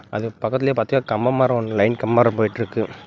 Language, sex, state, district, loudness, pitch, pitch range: Tamil, male, Tamil Nadu, Namakkal, -20 LUFS, 115 Hz, 110-125 Hz